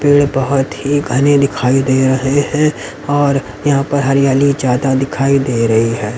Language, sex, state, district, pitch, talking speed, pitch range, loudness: Hindi, male, Haryana, Rohtak, 135 Hz, 165 wpm, 130-145 Hz, -14 LUFS